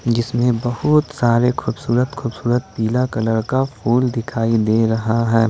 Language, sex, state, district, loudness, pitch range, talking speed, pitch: Hindi, male, Jharkhand, Ranchi, -18 LUFS, 115-125 Hz, 155 wpm, 120 Hz